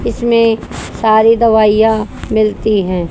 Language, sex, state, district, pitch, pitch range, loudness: Hindi, female, Haryana, Charkhi Dadri, 220 Hz, 215-225 Hz, -12 LUFS